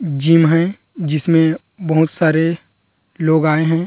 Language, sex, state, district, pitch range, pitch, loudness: Chhattisgarhi, male, Chhattisgarh, Rajnandgaon, 155-165 Hz, 160 Hz, -15 LUFS